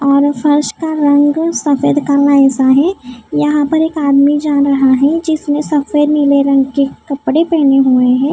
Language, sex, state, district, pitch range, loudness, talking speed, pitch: Hindi, female, Maharashtra, Mumbai Suburban, 275-300 Hz, -12 LUFS, 175 wpm, 285 Hz